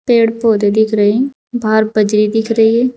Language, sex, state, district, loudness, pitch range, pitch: Hindi, female, Uttar Pradesh, Saharanpur, -13 LUFS, 215-235 Hz, 225 Hz